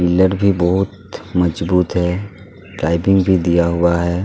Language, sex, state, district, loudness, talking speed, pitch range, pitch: Hindi, male, Chhattisgarh, Kabirdham, -16 LUFS, 155 wpm, 85-95 Hz, 90 Hz